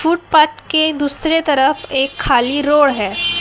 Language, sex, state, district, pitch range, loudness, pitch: Hindi, male, Chhattisgarh, Raipur, 270-315 Hz, -15 LUFS, 290 Hz